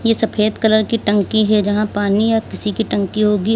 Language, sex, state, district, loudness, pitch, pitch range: Hindi, female, Uttar Pradesh, Lalitpur, -16 LUFS, 215 Hz, 205-225 Hz